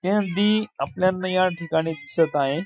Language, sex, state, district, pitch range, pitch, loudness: Marathi, female, Maharashtra, Dhule, 160-190 Hz, 185 Hz, -23 LUFS